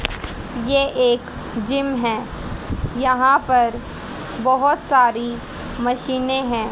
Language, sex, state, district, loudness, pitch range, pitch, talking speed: Hindi, female, Haryana, Jhajjar, -20 LUFS, 235-265 Hz, 250 Hz, 90 wpm